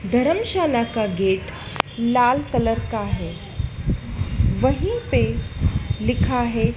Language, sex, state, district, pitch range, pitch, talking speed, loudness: Hindi, female, Madhya Pradesh, Dhar, 190-260 Hz, 235 Hz, 100 wpm, -22 LUFS